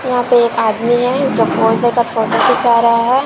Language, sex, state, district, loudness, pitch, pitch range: Hindi, female, Chhattisgarh, Raipur, -13 LUFS, 240 Hz, 230-245 Hz